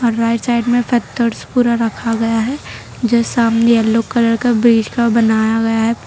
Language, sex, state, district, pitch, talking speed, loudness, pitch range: Hindi, female, Gujarat, Valsad, 230 Hz, 180 wpm, -15 LUFS, 225-235 Hz